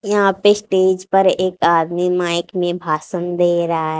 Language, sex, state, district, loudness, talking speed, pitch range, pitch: Hindi, female, Haryana, Charkhi Dadri, -17 LUFS, 180 wpm, 170-190 Hz, 180 Hz